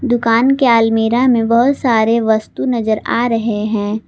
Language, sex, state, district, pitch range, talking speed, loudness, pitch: Hindi, female, Jharkhand, Palamu, 220-240 Hz, 160 wpm, -14 LUFS, 230 Hz